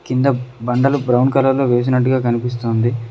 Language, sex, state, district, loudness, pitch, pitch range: Telugu, male, Telangana, Mahabubabad, -17 LUFS, 125 Hz, 120-130 Hz